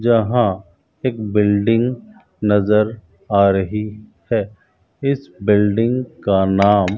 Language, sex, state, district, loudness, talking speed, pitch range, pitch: Hindi, male, Rajasthan, Bikaner, -18 LUFS, 105 wpm, 100-120 Hz, 105 Hz